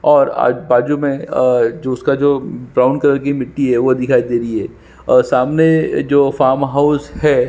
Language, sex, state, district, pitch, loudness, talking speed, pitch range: Hindi, male, Chhattisgarh, Sukma, 140 Hz, -15 LUFS, 185 wpm, 125-145 Hz